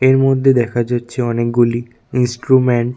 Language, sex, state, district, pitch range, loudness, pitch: Bengali, male, Tripura, West Tripura, 120-130 Hz, -16 LUFS, 120 Hz